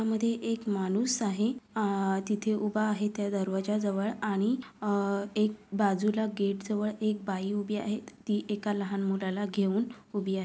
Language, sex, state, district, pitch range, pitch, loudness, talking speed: Marathi, female, Maharashtra, Sindhudurg, 200-215 Hz, 210 Hz, -31 LUFS, 155 wpm